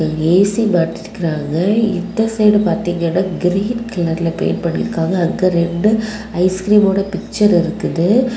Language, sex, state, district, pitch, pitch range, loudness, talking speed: Tamil, female, Tamil Nadu, Kanyakumari, 190 Hz, 170-210 Hz, -16 LUFS, 100 wpm